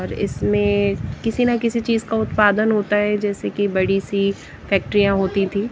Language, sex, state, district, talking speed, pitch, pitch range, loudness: Hindi, female, Punjab, Kapurthala, 170 wpm, 205 Hz, 195-220 Hz, -19 LUFS